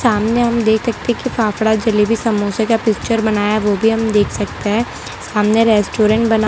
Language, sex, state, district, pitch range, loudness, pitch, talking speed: Hindi, female, Gujarat, Valsad, 215-225 Hz, -15 LUFS, 220 Hz, 205 wpm